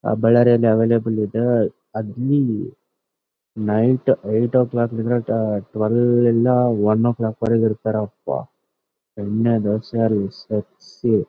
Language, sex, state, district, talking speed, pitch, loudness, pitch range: Kannada, male, Karnataka, Bellary, 80 wpm, 115 Hz, -19 LUFS, 110-120 Hz